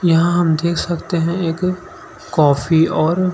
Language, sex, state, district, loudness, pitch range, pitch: Hindi, male, Chhattisgarh, Sukma, -17 LUFS, 160-175 Hz, 170 Hz